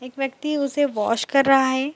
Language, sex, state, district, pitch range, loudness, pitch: Hindi, female, Bihar, Bhagalpur, 260-285 Hz, -21 LUFS, 270 Hz